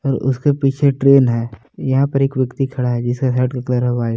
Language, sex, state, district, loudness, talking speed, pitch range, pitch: Hindi, male, Jharkhand, Palamu, -17 LUFS, 260 wpm, 125-135 Hz, 130 Hz